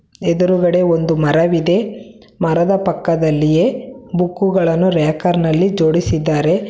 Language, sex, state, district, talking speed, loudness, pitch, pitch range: Kannada, female, Karnataka, Bangalore, 80 wpm, -15 LUFS, 170 Hz, 160-185 Hz